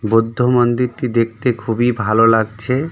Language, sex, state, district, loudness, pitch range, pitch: Bengali, male, West Bengal, Darjeeling, -16 LUFS, 115-125 Hz, 115 Hz